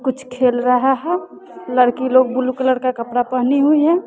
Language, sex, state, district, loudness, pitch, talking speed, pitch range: Hindi, female, Bihar, West Champaran, -17 LUFS, 255 Hz, 190 wpm, 250-270 Hz